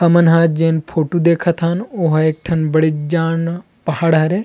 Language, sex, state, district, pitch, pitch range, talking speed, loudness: Chhattisgarhi, male, Chhattisgarh, Rajnandgaon, 165 Hz, 160-170 Hz, 190 wpm, -16 LUFS